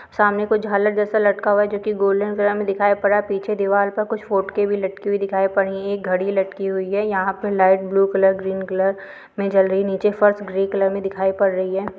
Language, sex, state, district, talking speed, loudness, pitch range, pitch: Hindi, female, Uttarakhand, Uttarkashi, 260 wpm, -20 LUFS, 195-205 Hz, 200 Hz